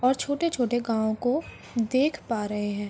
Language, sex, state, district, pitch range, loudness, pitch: Hindi, female, Uttar Pradesh, Varanasi, 220-265 Hz, -27 LUFS, 240 Hz